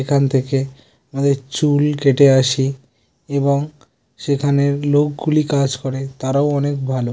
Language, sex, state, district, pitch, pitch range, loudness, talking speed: Bengali, male, West Bengal, Kolkata, 140 Hz, 135-145 Hz, -17 LUFS, 120 wpm